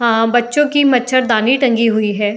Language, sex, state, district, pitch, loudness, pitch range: Hindi, female, Uttar Pradesh, Etah, 240 Hz, -14 LUFS, 220-255 Hz